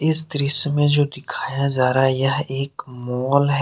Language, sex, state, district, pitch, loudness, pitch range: Hindi, male, Jharkhand, Deoghar, 140 Hz, -20 LUFS, 135-145 Hz